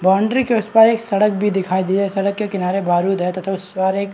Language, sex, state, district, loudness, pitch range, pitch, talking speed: Hindi, male, Chhattisgarh, Rajnandgaon, -17 LUFS, 190-210 Hz, 195 Hz, 260 wpm